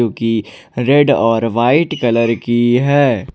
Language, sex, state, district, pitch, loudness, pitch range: Hindi, male, Jharkhand, Ranchi, 120 Hz, -14 LUFS, 115-140 Hz